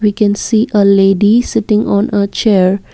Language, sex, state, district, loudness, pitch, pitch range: English, female, Assam, Kamrup Metropolitan, -12 LUFS, 210 Hz, 200-220 Hz